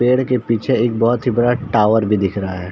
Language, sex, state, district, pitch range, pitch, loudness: Hindi, male, Uttar Pradesh, Ghazipur, 105-125 Hz, 115 Hz, -17 LUFS